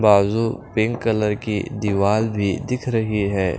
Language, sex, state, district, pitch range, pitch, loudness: Hindi, male, Punjab, Pathankot, 100-115 Hz, 110 Hz, -21 LUFS